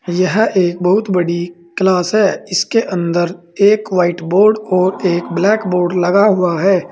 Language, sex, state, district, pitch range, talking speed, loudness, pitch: Hindi, male, Uttar Pradesh, Saharanpur, 175-200 Hz, 155 wpm, -14 LUFS, 185 Hz